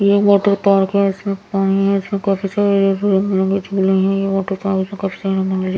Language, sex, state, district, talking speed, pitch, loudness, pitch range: Hindi, female, Bihar, Patna, 165 wpm, 195 Hz, -17 LUFS, 195-200 Hz